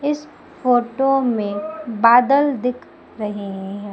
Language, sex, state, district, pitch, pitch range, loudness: Hindi, female, Madhya Pradesh, Umaria, 240 Hz, 210-270 Hz, -19 LUFS